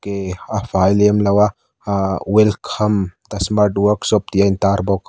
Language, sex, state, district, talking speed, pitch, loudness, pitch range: Mizo, male, Mizoram, Aizawl, 175 wpm, 100 Hz, -17 LUFS, 100-105 Hz